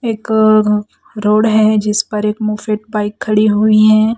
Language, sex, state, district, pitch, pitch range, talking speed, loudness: Hindi, female, Chhattisgarh, Raipur, 215 Hz, 210-215 Hz, 160 wpm, -13 LUFS